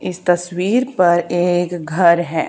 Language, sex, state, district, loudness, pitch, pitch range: Hindi, female, Haryana, Charkhi Dadri, -16 LUFS, 175 Hz, 175-180 Hz